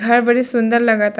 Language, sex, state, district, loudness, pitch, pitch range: Bhojpuri, female, Bihar, Saran, -15 LUFS, 235 Hz, 225-240 Hz